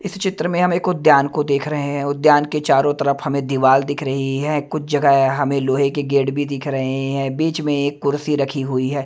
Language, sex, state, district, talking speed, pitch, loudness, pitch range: Hindi, male, Himachal Pradesh, Shimla, 240 wpm, 140 Hz, -18 LUFS, 135-150 Hz